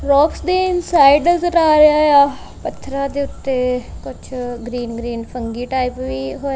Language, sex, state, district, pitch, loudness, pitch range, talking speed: Punjabi, female, Punjab, Kapurthala, 275 Hz, -16 LUFS, 245-300 Hz, 155 wpm